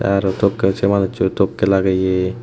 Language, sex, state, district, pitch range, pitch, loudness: Chakma, male, Tripura, Unakoti, 95-100 Hz, 95 Hz, -17 LUFS